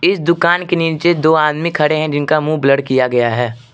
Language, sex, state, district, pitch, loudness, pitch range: Hindi, male, Arunachal Pradesh, Lower Dibang Valley, 155 Hz, -14 LUFS, 140-170 Hz